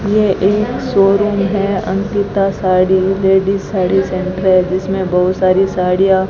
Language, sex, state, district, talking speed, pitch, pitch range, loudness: Hindi, female, Rajasthan, Bikaner, 135 wpm, 190 Hz, 185-200 Hz, -14 LUFS